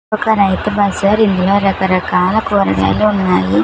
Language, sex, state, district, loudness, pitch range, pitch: Telugu, female, Telangana, Hyderabad, -13 LUFS, 185-210 Hz, 195 Hz